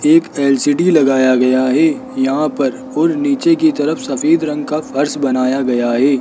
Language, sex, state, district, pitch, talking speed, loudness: Hindi, male, Rajasthan, Jaipur, 150 Hz, 175 wpm, -14 LUFS